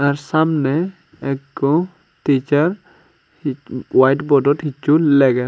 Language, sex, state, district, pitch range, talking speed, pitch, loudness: Chakma, male, Tripura, Unakoti, 140-160 Hz, 110 wpm, 145 Hz, -17 LUFS